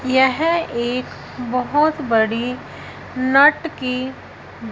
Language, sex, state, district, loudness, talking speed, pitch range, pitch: Hindi, female, Punjab, Fazilka, -18 LUFS, 90 wpm, 245-280 Hz, 255 Hz